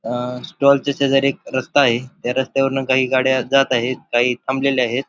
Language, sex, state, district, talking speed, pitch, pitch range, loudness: Marathi, male, Maharashtra, Pune, 190 wpm, 130 Hz, 125-135 Hz, -18 LUFS